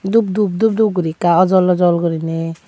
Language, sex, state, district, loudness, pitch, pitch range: Chakma, female, Tripura, Dhalai, -15 LUFS, 180 Hz, 170-210 Hz